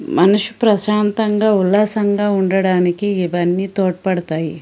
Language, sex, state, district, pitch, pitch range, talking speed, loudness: Telugu, female, Andhra Pradesh, Srikakulam, 195 Hz, 180-210 Hz, 80 wpm, -16 LUFS